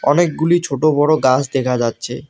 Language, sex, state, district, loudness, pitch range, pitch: Bengali, male, West Bengal, Alipurduar, -16 LUFS, 130-155 Hz, 140 Hz